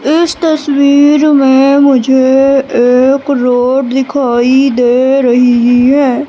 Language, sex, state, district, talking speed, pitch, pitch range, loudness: Hindi, female, Madhya Pradesh, Katni, 95 wpm, 270 Hz, 250-280 Hz, -9 LUFS